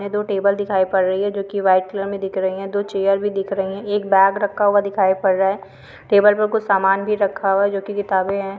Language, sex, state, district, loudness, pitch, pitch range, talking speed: Hindi, female, Uttarakhand, Uttarkashi, -18 LUFS, 195 Hz, 195-205 Hz, 280 wpm